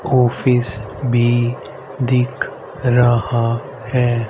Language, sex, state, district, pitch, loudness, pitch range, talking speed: Hindi, male, Haryana, Rohtak, 125 Hz, -18 LUFS, 120-130 Hz, 70 wpm